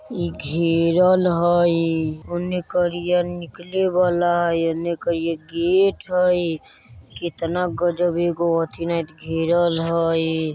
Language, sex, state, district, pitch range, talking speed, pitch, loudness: Bajjika, male, Bihar, Vaishali, 165-175 Hz, 110 wpm, 170 Hz, -20 LUFS